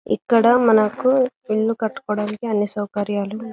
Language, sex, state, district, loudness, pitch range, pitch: Telugu, female, Telangana, Karimnagar, -19 LUFS, 210-230 Hz, 215 Hz